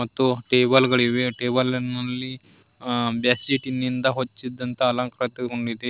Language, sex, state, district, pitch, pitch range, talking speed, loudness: Kannada, male, Karnataka, Koppal, 125 Hz, 125-130 Hz, 80 wpm, -22 LUFS